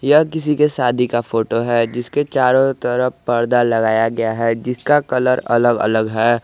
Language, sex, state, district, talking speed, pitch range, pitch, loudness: Hindi, male, Jharkhand, Garhwa, 175 wpm, 115-130 Hz, 120 Hz, -17 LUFS